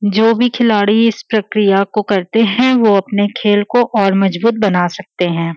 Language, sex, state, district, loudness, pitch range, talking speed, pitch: Hindi, female, Uttar Pradesh, Varanasi, -13 LUFS, 195-225 Hz, 185 wpm, 205 Hz